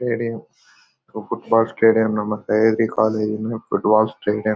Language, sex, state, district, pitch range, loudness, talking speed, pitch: Kannada, male, Karnataka, Shimoga, 110-115 Hz, -19 LUFS, 105 wpm, 110 Hz